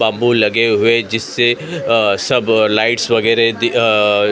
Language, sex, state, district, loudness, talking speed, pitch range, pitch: Hindi, male, Maharashtra, Mumbai Suburban, -14 LUFS, 155 wpm, 110-120 Hz, 115 Hz